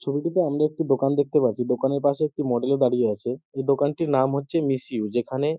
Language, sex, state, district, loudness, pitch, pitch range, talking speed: Bengali, male, West Bengal, North 24 Parganas, -23 LUFS, 140 Hz, 130-150 Hz, 225 wpm